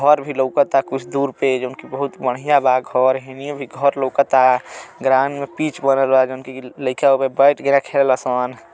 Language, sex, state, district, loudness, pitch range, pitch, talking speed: Bhojpuri, male, Uttar Pradesh, Gorakhpur, -18 LUFS, 130-140 Hz, 135 Hz, 205 wpm